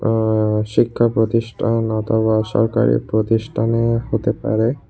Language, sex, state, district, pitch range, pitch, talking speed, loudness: Bengali, male, Tripura, West Tripura, 110-115 Hz, 110 Hz, 100 wpm, -18 LUFS